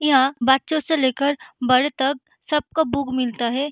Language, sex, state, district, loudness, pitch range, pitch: Hindi, female, Bihar, Begusarai, -21 LUFS, 260-295 Hz, 275 Hz